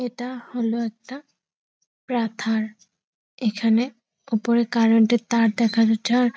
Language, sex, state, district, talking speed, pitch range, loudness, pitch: Bengali, female, West Bengal, Purulia, 130 wpm, 225-245 Hz, -22 LUFS, 230 Hz